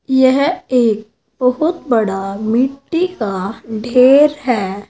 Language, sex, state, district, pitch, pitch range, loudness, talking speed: Hindi, female, Uttar Pradesh, Saharanpur, 250 Hz, 220-275 Hz, -15 LUFS, 100 wpm